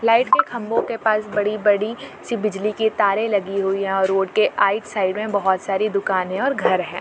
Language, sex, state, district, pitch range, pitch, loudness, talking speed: Hindi, female, Jharkhand, Jamtara, 195-220 Hz, 205 Hz, -20 LUFS, 240 wpm